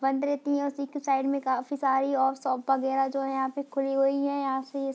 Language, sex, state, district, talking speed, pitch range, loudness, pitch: Hindi, female, Bihar, Darbhanga, 280 wpm, 270-280 Hz, -28 LUFS, 270 Hz